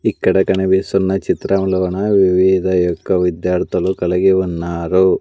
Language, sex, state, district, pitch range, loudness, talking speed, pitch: Telugu, male, Andhra Pradesh, Sri Satya Sai, 90-95 Hz, -16 LUFS, 90 wpm, 95 Hz